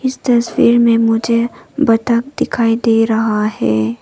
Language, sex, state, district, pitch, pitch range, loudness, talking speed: Hindi, female, Arunachal Pradesh, Papum Pare, 230 Hz, 225-240 Hz, -14 LUFS, 135 wpm